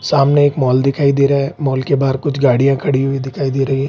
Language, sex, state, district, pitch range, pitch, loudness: Hindi, male, Bihar, Gaya, 135-140 Hz, 135 Hz, -15 LUFS